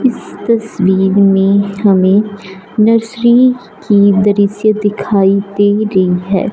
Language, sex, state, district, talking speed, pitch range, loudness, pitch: Hindi, male, Punjab, Fazilka, 100 wpm, 195-215 Hz, -11 LUFS, 200 Hz